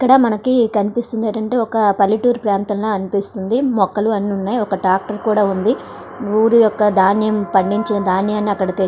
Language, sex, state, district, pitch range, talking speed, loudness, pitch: Telugu, female, Andhra Pradesh, Srikakulam, 200-225 Hz, 150 wpm, -16 LUFS, 210 Hz